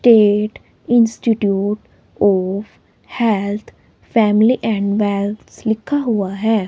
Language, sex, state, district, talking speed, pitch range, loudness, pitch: Hindi, female, Himachal Pradesh, Shimla, 90 wpm, 200-225 Hz, -17 LUFS, 215 Hz